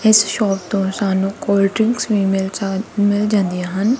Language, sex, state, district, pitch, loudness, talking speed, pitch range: Punjabi, female, Punjab, Kapurthala, 200 Hz, -17 LUFS, 180 wpm, 195-210 Hz